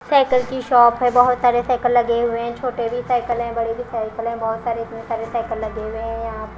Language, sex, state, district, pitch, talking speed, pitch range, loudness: Hindi, female, Punjab, Kapurthala, 235 Hz, 245 wpm, 230-245 Hz, -20 LUFS